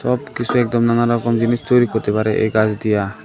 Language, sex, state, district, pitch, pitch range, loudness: Bengali, male, Tripura, Dhalai, 115 Hz, 110-120 Hz, -17 LUFS